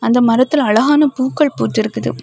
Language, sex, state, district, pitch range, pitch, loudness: Tamil, female, Tamil Nadu, Kanyakumari, 235-290 Hz, 260 Hz, -14 LUFS